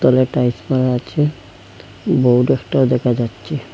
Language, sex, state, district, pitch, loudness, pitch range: Bengali, male, Assam, Hailakandi, 125 Hz, -17 LUFS, 115-130 Hz